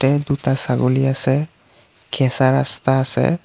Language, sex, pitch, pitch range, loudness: Assamese, male, 135 Hz, 125-140 Hz, -18 LUFS